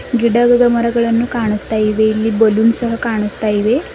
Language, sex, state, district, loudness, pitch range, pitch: Kannada, female, Karnataka, Bidar, -14 LUFS, 215-235 Hz, 230 Hz